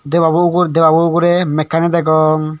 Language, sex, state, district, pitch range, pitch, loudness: Chakma, male, Tripura, Dhalai, 155-170 Hz, 165 Hz, -13 LUFS